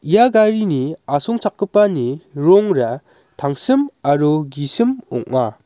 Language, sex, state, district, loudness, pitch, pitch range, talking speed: Garo, male, Meghalaya, West Garo Hills, -17 LUFS, 160 Hz, 140-215 Hz, 85 wpm